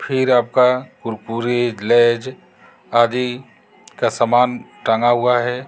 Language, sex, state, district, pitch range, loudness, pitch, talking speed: Hindi, male, Jharkhand, Garhwa, 120-125 Hz, -17 LUFS, 120 Hz, 105 wpm